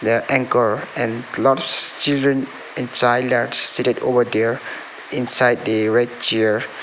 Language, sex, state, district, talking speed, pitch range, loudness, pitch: English, male, Sikkim, Gangtok, 130 wpm, 110-125 Hz, -19 LUFS, 120 Hz